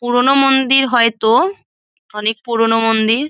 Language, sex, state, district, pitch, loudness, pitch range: Bengali, female, West Bengal, Jalpaiguri, 245 Hz, -14 LUFS, 225-270 Hz